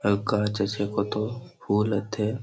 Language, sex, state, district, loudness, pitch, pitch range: Bengali, male, West Bengal, Malda, -27 LUFS, 105 Hz, 100-105 Hz